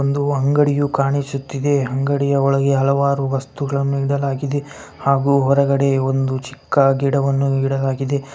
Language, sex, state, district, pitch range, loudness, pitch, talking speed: Kannada, male, Karnataka, Bellary, 135-140 Hz, -18 LUFS, 140 Hz, 110 wpm